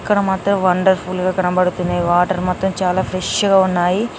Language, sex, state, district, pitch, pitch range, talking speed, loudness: Telugu, female, Telangana, Nalgonda, 185 Hz, 180-190 Hz, 160 wpm, -17 LUFS